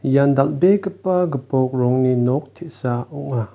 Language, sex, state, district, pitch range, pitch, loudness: Garo, male, Meghalaya, West Garo Hills, 130-170 Hz, 135 Hz, -19 LUFS